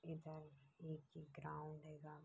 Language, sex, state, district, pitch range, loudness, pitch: Hindi, female, Bihar, Begusarai, 150-155 Hz, -55 LUFS, 155 Hz